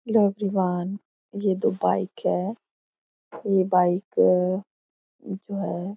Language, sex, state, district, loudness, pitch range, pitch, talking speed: Hindi, female, Bihar, Jahanabad, -24 LUFS, 180-200 Hz, 190 Hz, 130 wpm